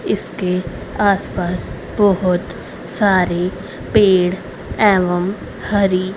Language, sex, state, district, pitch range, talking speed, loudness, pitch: Hindi, female, Haryana, Rohtak, 180-200 Hz, 80 wpm, -17 LUFS, 185 Hz